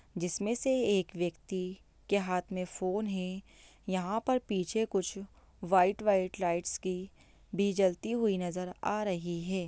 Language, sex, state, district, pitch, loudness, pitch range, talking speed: Hindi, female, Bihar, Lakhisarai, 190 Hz, -33 LUFS, 180-205 Hz, 150 wpm